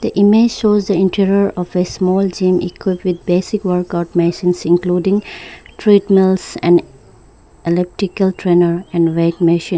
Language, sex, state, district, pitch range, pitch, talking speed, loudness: English, female, Arunachal Pradesh, Lower Dibang Valley, 175-195 Hz, 185 Hz, 130 wpm, -15 LUFS